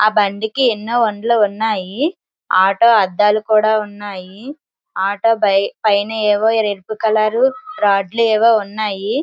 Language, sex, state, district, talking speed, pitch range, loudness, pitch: Telugu, female, Andhra Pradesh, Srikakulam, 105 wpm, 205-230 Hz, -16 LUFS, 215 Hz